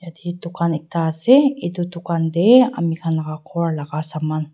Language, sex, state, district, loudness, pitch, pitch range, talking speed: Nagamese, female, Nagaland, Dimapur, -19 LUFS, 170 Hz, 160-175 Hz, 170 wpm